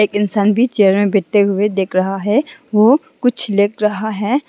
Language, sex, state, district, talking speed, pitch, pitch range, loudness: Hindi, female, Arunachal Pradesh, Longding, 185 wpm, 210 Hz, 205-235 Hz, -15 LUFS